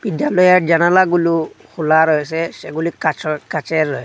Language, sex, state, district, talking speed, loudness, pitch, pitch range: Bengali, male, Assam, Hailakandi, 120 wpm, -16 LUFS, 165 Hz, 155-170 Hz